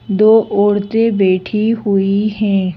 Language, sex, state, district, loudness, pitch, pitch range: Hindi, female, Madhya Pradesh, Bhopal, -14 LUFS, 205 Hz, 195-215 Hz